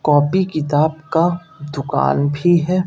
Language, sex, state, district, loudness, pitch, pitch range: Hindi, male, Bihar, Katihar, -17 LUFS, 155 Hz, 145-175 Hz